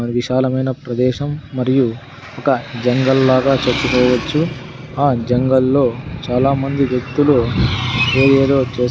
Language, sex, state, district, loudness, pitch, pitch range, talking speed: Telugu, male, Andhra Pradesh, Sri Satya Sai, -16 LUFS, 130 Hz, 125-135 Hz, 110 wpm